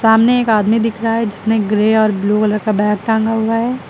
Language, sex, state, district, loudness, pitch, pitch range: Hindi, female, Uttar Pradesh, Lucknow, -15 LUFS, 220 Hz, 210-225 Hz